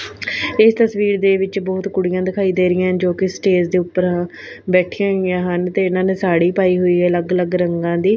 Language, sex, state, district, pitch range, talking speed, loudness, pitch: Punjabi, female, Punjab, Fazilka, 180-190 Hz, 220 wpm, -17 LUFS, 185 Hz